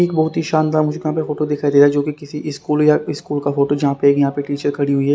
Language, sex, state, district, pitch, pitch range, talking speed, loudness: Hindi, male, Haryana, Rohtak, 145 Hz, 145-150 Hz, 325 wpm, -17 LUFS